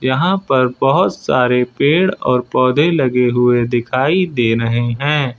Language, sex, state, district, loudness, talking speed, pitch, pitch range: Hindi, male, Uttar Pradesh, Lucknow, -15 LUFS, 145 wpm, 125 Hz, 120-145 Hz